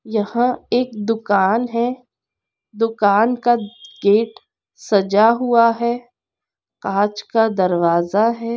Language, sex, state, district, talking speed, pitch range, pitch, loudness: Hindi, female, Andhra Pradesh, Anantapur, 100 wpm, 205-235 Hz, 225 Hz, -18 LUFS